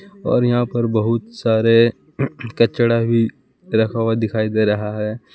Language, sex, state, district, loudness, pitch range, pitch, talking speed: Hindi, male, Jharkhand, Palamu, -18 LUFS, 110-120 Hz, 115 Hz, 145 wpm